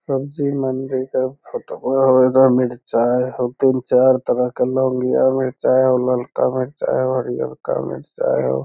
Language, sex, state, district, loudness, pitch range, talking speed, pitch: Hindi, male, Bihar, Lakhisarai, -18 LUFS, 125-130 Hz, 175 wpm, 130 Hz